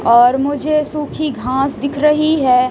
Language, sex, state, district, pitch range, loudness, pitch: Hindi, female, Haryana, Rohtak, 255-300 Hz, -15 LUFS, 280 Hz